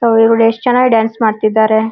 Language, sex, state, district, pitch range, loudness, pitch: Kannada, female, Karnataka, Dharwad, 220-230 Hz, -12 LUFS, 225 Hz